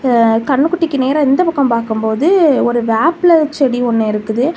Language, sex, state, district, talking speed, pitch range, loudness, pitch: Tamil, female, Tamil Nadu, Kanyakumari, 160 wpm, 230-310 Hz, -13 LUFS, 265 Hz